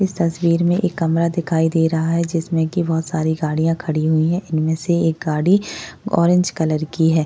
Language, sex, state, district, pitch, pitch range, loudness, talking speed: Hindi, female, Maharashtra, Chandrapur, 165 Hz, 160-170 Hz, -18 LUFS, 205 wpm